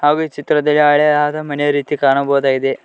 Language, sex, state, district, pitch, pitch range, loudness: Kannada, male, Karnataka, Koppal, 145 Hz, 140-150 Hz, -15 LUFS